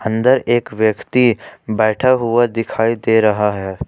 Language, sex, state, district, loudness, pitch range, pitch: Hindi, male, Jharkhand, Ranchi, -16 LUFS, 110-120 Hz, 115 Hz